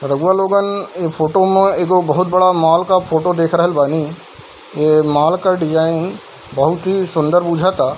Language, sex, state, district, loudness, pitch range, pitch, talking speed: Hindi, male, Bihar, Darbhanga, -15 LUFS, 160-185 Hz, 175 Hz, 180 wpm